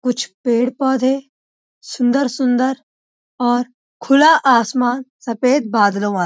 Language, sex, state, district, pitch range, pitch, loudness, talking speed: Hindi, female, Uttarakhand, Uttarkashi, 240-270 Hz, 250 Hz, -16 LUFS, 105 wpm